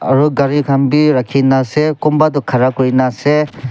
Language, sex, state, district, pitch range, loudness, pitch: Nagamese, male, Nagaland, Kohima, 130-150 Hz, -13 LUFS, 140 Hz